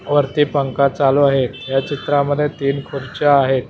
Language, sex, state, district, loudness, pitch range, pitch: Marathi, male, Maharashtra, Mumbai Suburban, -17 LUFS, 135-145 Hz, 140 Hz